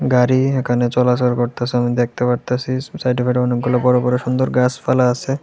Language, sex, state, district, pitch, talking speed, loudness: Bengali, male, Tripura, West Tripura, 125 Hz, 165 wpm, -17 LUFS